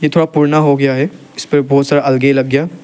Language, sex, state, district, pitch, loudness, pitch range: Hindi, male, Arunachal Pradesh, Lower Dibang Valley, 145 Hz, -13 LUFS, 140-150 Hz